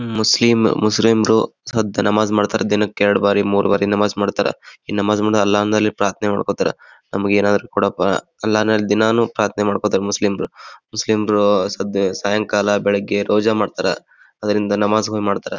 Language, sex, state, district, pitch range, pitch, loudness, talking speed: Kannada, male, Karnataka, Bijapur, 100-110 Hz, 105 Hz, -17 LUFS, 130 wpm